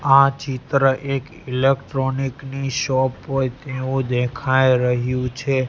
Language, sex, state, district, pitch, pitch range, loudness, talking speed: Gujarati, male, Gujarat, Gandhinagar, 135 Hz, 130-135 Hz, -20 LUFS, 115 wpm